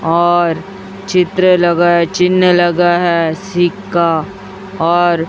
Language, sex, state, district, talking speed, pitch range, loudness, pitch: Hindi, female, Chhattisgarh, Raipur, 90 wpm, 170-185 Hz, -13 LUFS, 175 Hz